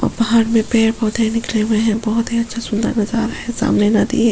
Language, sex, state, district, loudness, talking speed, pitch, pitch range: Hindi, female, Chhattisgarh, Sukma, -17 LUFS, 265 wpm, 230 Hz, 220-230 Hz